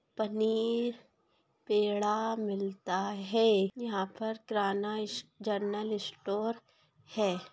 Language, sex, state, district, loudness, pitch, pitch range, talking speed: Hindi, female, Bihar, East Champaran, -33 LUFS, 210 Hz, 200-220 Hz, 85 wpm